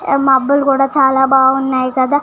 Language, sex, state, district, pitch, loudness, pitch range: Telugu, female, Telangana, Nalgonda, 270 Hz, -12 LUFS, 265-275 Hz